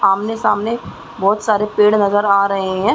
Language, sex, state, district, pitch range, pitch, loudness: Hindi, female, Chhattisgarh, Raigarh, 200-210 Hz, 205 Hz, -16 LUFS